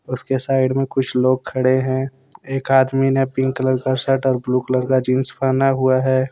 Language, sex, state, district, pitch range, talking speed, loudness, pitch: Hindi, male, Jharkhand, Deoghar, 130-135 Hz, 210 wpm, -18 LUFS, 130 Hz